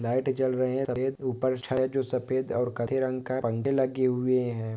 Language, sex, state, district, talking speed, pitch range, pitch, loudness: Hindi, male, West Bengal, North 24 Parganas, 200 wpm, 125-130 Hz, 130 Hz, -28 LUFS